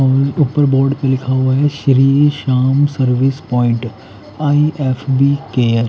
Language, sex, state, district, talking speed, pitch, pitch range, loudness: Hindi, male, Haryana, Charkhi Dadri, 145 wpm, 135 Hz, 130-140 Hz, -14 LUFS